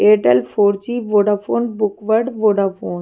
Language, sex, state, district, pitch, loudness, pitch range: Hindi, female, Himachal Pradesh, Shimla, 210 Hz, -17 LUFS, 200-220 Hz